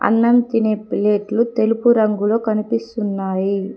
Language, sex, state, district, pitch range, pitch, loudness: Telugu, female, Telangana, Komaram Bheem, 205-230 Hz, 220 Hz, -18 LUFS